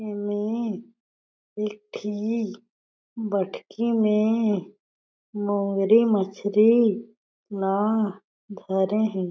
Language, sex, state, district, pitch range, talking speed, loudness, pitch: Chhattisgarhi, female, Chhattisgarh, Jashpur, 200-220 Hz, 65 wpm, -24 LUFS, 210 Hz